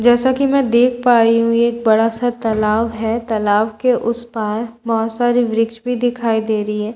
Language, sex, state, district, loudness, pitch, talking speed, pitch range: Hindi, female, Bihar, Katihar, -16 LUFS, 230 Hz, 215 wpm, 220-240 Hz